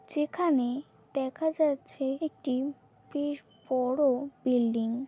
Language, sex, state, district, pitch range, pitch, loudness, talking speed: Bengali, female, West Bengal, Kolkata, 255-295 Hz, 275 Hz, -30 LUFS, 95 wpm